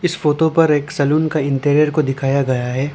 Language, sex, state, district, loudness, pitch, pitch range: Hindi, male, Arunachal Pradesh, Lower Dibang Valley, -16 LUFS, 150 Hz, 140-155 Hz